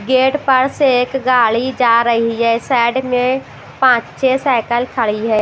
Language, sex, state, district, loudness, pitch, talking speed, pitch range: Hindi, female, Maharashtra, Washim, -14 LUFS, 250 Hz, 165 wpm, 235-260 Hz